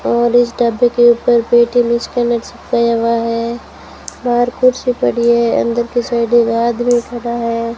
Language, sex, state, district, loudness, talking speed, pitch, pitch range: Hindi, female, Rajasthan, Bikaner, -14 LUFS, 160 wpm, 235 Hz, 235-240 Hz